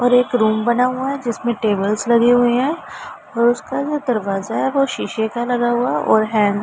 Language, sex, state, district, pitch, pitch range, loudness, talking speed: Hindi, female, Punjab, Pathankot, 240 Hz, 220-250 Hz, -18 LUFS, 215 wpm